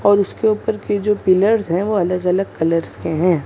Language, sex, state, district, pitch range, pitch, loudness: Hindi, female, Maharashtra, Mumbai Suburban, 180-210 Hz, 195 Hz, -18 LUFS